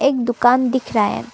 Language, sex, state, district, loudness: Hindi, female, Assam, Kamrup Metropolitan, -17 LUFS